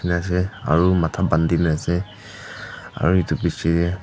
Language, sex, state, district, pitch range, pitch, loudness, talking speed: Nagamese, female, Nagaland, Dimapur, 85-90 Hz, 85 Hz, -20 LUFS, 105 wpm